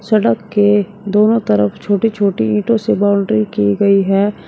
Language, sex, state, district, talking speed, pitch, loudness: Hindi, female, Uttar Pradesh, Shamli, 160 wpm, 200 Hz, -14 LUFS